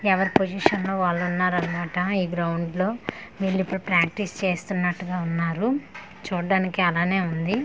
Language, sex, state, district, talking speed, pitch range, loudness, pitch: Telugu, female, Andhra Pradesh, Manyam, 120 wpm, 175-190 Hz, -24 LUFS, 185 Hz